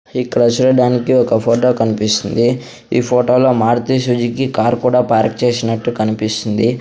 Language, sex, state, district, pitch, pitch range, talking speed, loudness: Telugu, male, Andhra Pradesh, Sri Satya Sai, 120 Hz, 115-125 Hz, 125 wpm, -14 LUFS